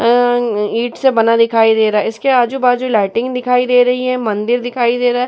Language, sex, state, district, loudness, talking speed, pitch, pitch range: Hindi, female, Uttar Pradesh, Etah, -14 LUFS, 240 wpm, 245 Hz, 225-250 Hz